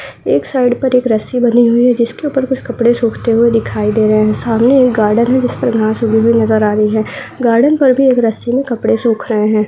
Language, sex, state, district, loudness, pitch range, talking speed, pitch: Hindi, female, Bihar, Saharsa, -12 LUFS, 220-250 Hz, 235 wpm, 235 Hz